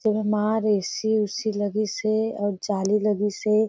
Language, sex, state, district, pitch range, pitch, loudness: Surgujia, female, Chhattisgarh, Sarguja, 205-215 Hz, 210 Hz, -24 LUFS